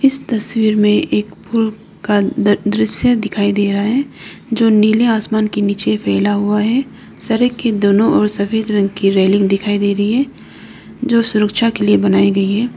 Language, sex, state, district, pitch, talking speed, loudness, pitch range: Hindi, female, Arunachal Pradesh, Lower Dibang Valley, 210 Hz, 185 wpm, -15 LUFS, 200-230 Hz